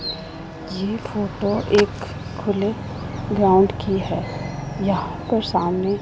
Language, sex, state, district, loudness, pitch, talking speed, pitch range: Hindi, female, Punjab, Pathankot, -22 LUFS, 195 Hz, 100 wpm, 185-205 Hz